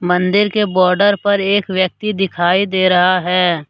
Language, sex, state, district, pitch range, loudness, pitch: Hindi, male, Jharkhand, Deoghar, 180-200 Hz, -14 LUFS, 185 Hz